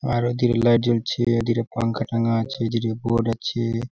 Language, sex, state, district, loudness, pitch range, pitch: Bengali, male, West Bengal, Jhargram, -22 LUFS, 115-120 Hz, 115 Hz